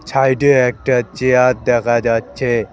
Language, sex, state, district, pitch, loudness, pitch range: Bengali, male, West Bengal, Cooch Behar, 125 Hz, -15 LUFS, 115-130 Hz